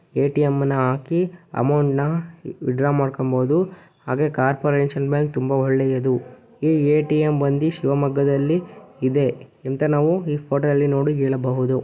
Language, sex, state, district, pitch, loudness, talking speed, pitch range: Kannada, male, Karnataka, Shimoga, 140 Hz, -21 LUFS, 120 wpm, 135-150 Hz